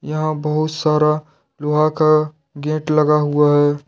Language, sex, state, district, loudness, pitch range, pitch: Hindi, male, Jharkhand, Deoghar, -17 LUFS, 150-155 Hz, 150 Hz